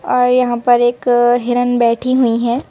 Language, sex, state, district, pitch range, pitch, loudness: Hindi, female, Madhya Pradesh, Bhopal, 240-250 Hz, 245 Hz, -14 LUFS